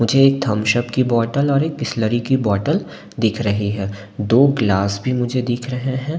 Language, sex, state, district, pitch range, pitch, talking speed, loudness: Hindi, male, Delhi, New Delhi, 105-130 Hz, 120 Hz, 195 wpm, -18 LUFS